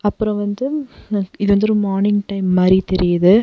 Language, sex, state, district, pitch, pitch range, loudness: Tamil, female, Tamil Nadu, Nilgiris, 205 Hz, 190-210 Hz, -17 LUFS